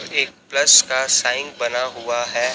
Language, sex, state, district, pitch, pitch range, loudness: Hindi, male, Chhattisgarh, Raipur, 125 Hz, 120-130 Hz, -17 LUFS